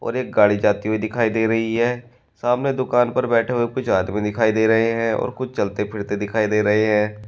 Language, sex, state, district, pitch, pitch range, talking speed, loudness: Hindi, male, Uttar Pradesh, Shamli, 110 Hz, 105-120 Hz, 230 wpm, -20 LUFS